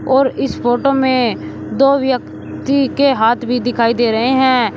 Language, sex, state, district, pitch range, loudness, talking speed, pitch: Hindi, male, Uttar Pradesh, Shamli, 240-270 Hz, -15 LUFS, 165 wpm, 260 Hz